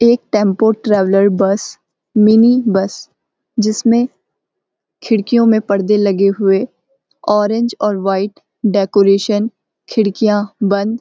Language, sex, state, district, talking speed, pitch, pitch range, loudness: Hindi, female, Uttarakhand, Uttarkashi, 105 wpm, 210 Hz, 200-225 Hz, -14 LUFS